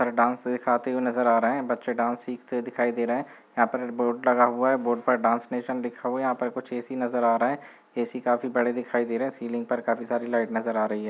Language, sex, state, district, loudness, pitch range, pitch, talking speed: Hindi, male, Chhattisgarh, Balrampur, -26 LUFS, 120-125 Hz, 120 Hz, 280 wpm